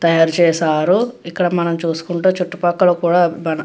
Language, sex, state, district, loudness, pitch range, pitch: Telugu, female, Andhra Pradesh, Guntur, -16 LUFS, 165-180 Hz, 170 Hz